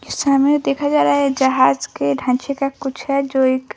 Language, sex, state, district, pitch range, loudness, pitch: Hindi, female, Bihar, Vaishali, 255-275 Hz, -17 LUFS, 270 Hz